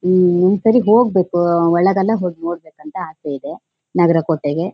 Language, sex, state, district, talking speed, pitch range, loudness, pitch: Kannada, female, Karnataka, Shimoga, 150 wpm, 165-185 Hz, -16 LUFS, 175 Hz